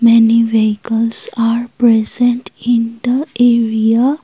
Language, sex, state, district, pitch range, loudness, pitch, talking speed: English, female, Assam, Kamrup Metropolitan, 225-245 Hz, -13 LUFS, 230 Hz, 100 wpm